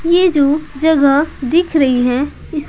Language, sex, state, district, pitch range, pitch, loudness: Hindi, female, Bihar, Patna, 280-320 Hz, 295 Hz, -14 LUFS